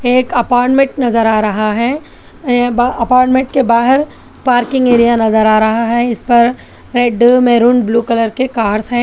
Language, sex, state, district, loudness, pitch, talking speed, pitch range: Hindi, female, Telangana, Hyderabad, -12 LUFS, 240 Hz, 165 wpm, 230-250 Hz